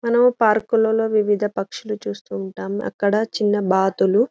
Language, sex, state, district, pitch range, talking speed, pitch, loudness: Telugu, female, Telangana, Karimnagar, 190-220 Hz, 155 wpm, 210 Hz, -20 LUFS